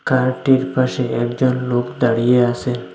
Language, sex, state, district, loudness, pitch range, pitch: Bengali, male, Assam, Hailakandi, -17 LUFS, 120-130 Hz, 125 Hz